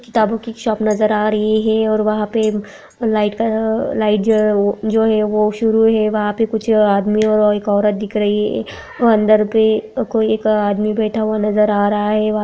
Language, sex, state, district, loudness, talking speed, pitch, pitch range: Hindi, female, Maharashtra, Aurangabad, -16 LUFS, 195 wpm, 215 Hz, 210-220 Hz